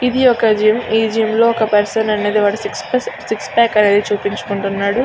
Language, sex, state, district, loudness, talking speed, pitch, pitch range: Telugu, female, Andhra Pradesh, Srikakulam, -15 LUFS, 145 wpm, 220 Hz, 205-230 Hz